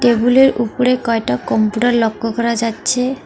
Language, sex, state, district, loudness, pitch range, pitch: Bengali, female, West Bengal, Alipurduar, -15 LUFS, 225-250 Hz, 235 Hz